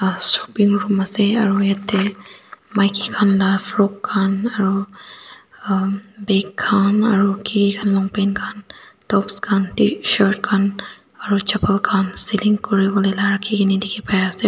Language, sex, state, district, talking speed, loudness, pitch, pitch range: Nagamese, female, Nagaland, Dimapur, 140 wpm, -18 LUFS, 200 Hz, 195-210 Hz